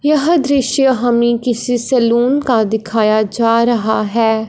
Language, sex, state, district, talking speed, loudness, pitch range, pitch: Hindi, female, Punjab, Fazilka, 135 wpm, -14 LUFS, 220-255 Hz, 235 Hz